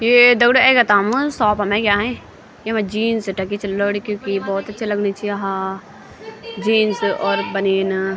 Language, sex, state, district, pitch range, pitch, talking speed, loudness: Garhwali, female, Uttarakhand, Tehri Garhwal, 195-220 Hz, 205 Hz, 175 wpm, -17 LUFS